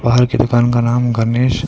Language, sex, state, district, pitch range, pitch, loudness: Hindi, male, Karnataka, Bangalore, 120-125 Hz, 120 Hz, -14 LUFS